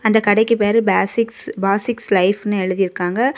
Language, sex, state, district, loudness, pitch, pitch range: Tamil, female, Tamil Nadu, Kanyakumari, -17 LUFS, 210 Hz, 195-225 Hz